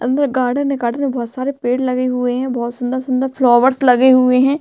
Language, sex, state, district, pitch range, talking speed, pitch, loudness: Hindi, female, Chhattisgarh, Sukma, 245-265 Hz, 220 wpm, 255 Hz, -16 LUFS